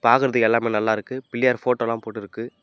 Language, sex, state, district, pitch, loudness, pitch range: Tamil, male, Tamil Nadu, Namakkal, 115 Hz, -21 LUFS, 110-125 Hz